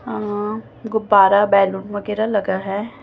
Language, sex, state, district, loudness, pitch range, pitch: Hindi, female, Chhattisgarh, Raipur, -18 LUFS, 195-215 Hz, 205 Hz